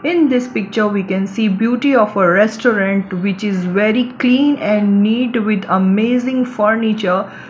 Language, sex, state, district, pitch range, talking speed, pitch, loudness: English, female, Gujarat, Valsad, 195-245 Hz, 150 wpm, 215 Hz, -15 LUFS